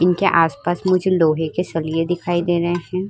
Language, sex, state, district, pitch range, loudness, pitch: Hindi, female, Uttar Pradesh, Varanasi, 165-180 Hz, -19 LUFS, 175 Hz